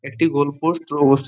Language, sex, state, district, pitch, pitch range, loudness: Bengali, male, West Bengal, Purulia, 145 Hz, 140-165 Hz, -20 LUFS